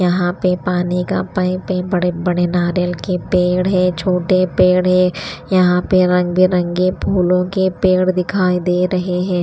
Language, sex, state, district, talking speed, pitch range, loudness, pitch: Hindi, female, Haryana, Rohtak, 160 wpm, 180-185 Hz, -16 LUFS, 180 Hz